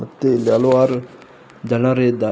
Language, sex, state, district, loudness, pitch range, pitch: Kannada, male, Karnataka, Koppal, -17 LUFS, 120-130 Hz, 125 Hz